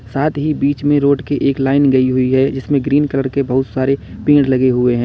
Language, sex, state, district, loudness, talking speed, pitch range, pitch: Hindi, male, Uttar Pradesh, Lalitpur, -15 LUFS, 250 wpm, 130-145 Hz, 135 Hz